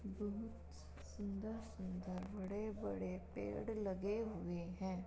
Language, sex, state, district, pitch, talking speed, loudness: Hindi, female, Uttar Pradesh, Jalaun, 190 Hz, 85 wpm, -46 LUFS